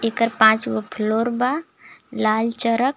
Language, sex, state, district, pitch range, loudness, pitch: Bhojpuri, male, Jharkhand, Palamu, 220-245 Hz, -20 LUFS, 230 Hz